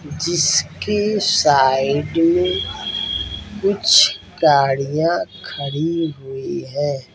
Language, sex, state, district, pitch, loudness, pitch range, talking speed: Hindi, male, Uttar Pradesh, Ghazipur, 145 Hz, -18 LUFS, 135-170 Hz, 65 wpm